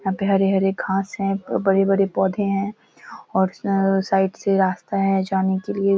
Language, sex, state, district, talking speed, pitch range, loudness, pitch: Hindi, female, Bihar, Samastipur, 160 wpm, 190-195 Hz, -21 LUFS, 195 Hz